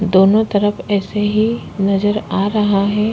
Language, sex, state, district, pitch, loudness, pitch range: Hindi, female, Chhattisgarh, Korba, 205 Hz, -16 LUFS, 195-210 Hz